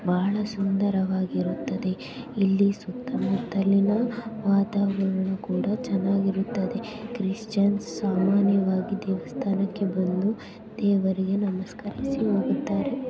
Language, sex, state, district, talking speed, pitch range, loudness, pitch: Kannada, female, Karnataka, Gulbarga, 75 wpm, 195-215 Hz, -26 LUFS, 200 Hz